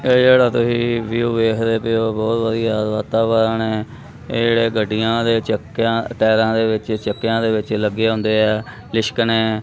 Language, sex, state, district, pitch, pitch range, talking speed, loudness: Punjabi, male, Punjab, Kapurthala, 115 Hz, 110-115 Hz, 155 wpm, -18 LUFS